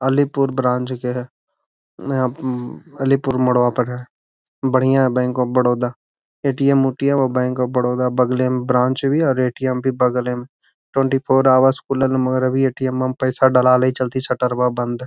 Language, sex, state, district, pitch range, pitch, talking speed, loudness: Magahi, male, Bihar, Gaya, 125-135 Hz, 130 Hz, 185 wpm, -18 LUFS